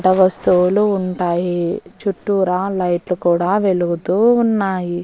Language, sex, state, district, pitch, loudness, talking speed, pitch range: Telugu, female, Andhra Pradesh, Annamaya, 185 Hz, -17 LUFS, 95 wpm, 175-195 Hz